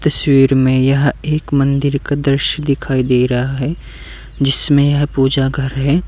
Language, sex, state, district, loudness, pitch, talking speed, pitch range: Hindi, male, Uttar Pradesh, Saharanpur, -14 LUFS, 140 Hz, 160 wpm, 135-145 Hz